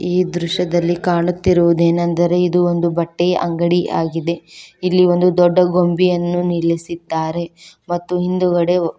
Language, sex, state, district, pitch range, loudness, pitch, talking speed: Kannada, female, Karnataka, Koppal, 170-180 Hz, -16 LUFS, 175 Hz, 95 wpm